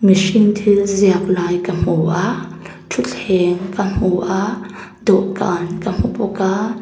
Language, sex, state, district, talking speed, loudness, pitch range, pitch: Mizo, female, Mizoram, Aizawl, 140 wpm, -17 LUFS, 185-200 Hz, 195 Hz